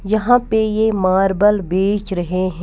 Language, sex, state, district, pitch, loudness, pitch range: Hindi, female, Punjab, Kapurthala, 205 Hz, -16 LUFS, 185-215 Hz